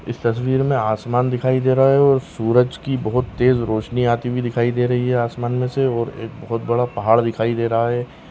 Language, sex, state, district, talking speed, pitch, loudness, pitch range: Kumaoni, male, Uttarakhand, Tehri Garhwal, 230 wpm, 120 Hz, -19 LUFS, 115-125 Hz